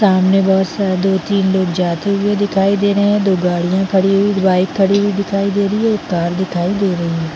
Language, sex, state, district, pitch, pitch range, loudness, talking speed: Hindi, female, Chhattisgarh, Bilaspur, 195 Hz, 185-200 Hz, -15 LUFS, 235 wpm